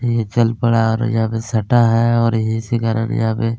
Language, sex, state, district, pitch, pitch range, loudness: Hindi, male, Chhattisgarh, Kabirdham, 115 Hz, 110-115 Hz, -17 LUFS